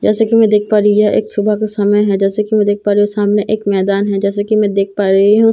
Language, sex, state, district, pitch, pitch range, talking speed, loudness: Hindi, female, Bihar, Katihar, 205 Hz, 200-210 Hz, 335 wpm, -13 LUFS